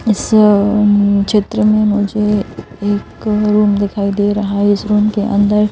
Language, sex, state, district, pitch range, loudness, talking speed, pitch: Hindi, female, Madhya Pradesh, Bhopal, 205-210 Hz, -13 LUFS, 180 wpm, 210 Hz